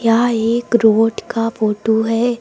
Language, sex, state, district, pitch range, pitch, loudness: Hindi, female, Uttar Pradesh, Lucknow, 225-235 Hz, 225 Hz, -16 LUFS